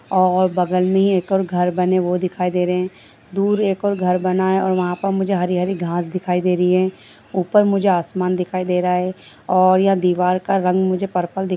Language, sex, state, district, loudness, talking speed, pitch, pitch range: Hindi, female, Bihar, Purnia, -18 LUFS, 230 wpm, 185 Hz, 180-190 Hz